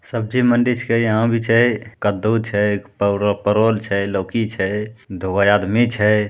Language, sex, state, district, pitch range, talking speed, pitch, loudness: Angika, male, Bihar, Bhagalpur, 100-115 Hz, 155 wpm, 105 Hz, -18 LUFS